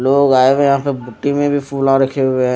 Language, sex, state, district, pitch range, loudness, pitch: Hindi, male, Odisha, Malkangiri, 130-140 Hz, -14 LUFS, 135 Hz